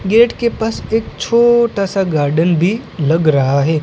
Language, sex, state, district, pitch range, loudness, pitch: Hindi, female, Gujarat, Gandhinagar, 155-230 Hz, -14 LUFS, 195 Hz